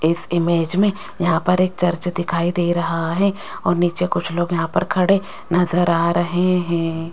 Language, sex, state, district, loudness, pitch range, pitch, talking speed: Hindi, female, Rajasthan, Jaipur, -19 LUFS, 170-180 Hz, 175 Hz, 185 wpm